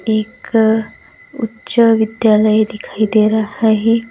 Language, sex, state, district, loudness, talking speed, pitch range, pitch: Hindi, female, Bihar, West Champaran, -14 LUFS, 100 wpm, 215-225 Hz, 220 Hz